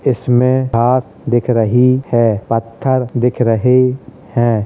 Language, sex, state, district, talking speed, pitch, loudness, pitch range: Hindi, male, Uttar Pradesh, Hamirpur, 115 wpm, 125 Hz, -14 LUFS, 115-130 Hz